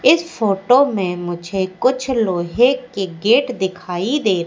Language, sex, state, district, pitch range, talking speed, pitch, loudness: Hindi, female, Madhya Pradesh, Katni, 185-255 Hz, 135 wpm, 200 Hz, -18 LUFS